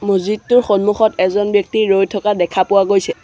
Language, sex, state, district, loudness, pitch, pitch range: Assamese, male, Assam, Sonitpur, -15 LUFS, 200 Hz, 195-210 Hz